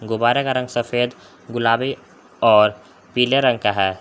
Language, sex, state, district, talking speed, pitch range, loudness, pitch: Hindi, male, Jharkhand, Palamu, 150 wpm, 110-125 Hz, -19 LUFS, 120 Hz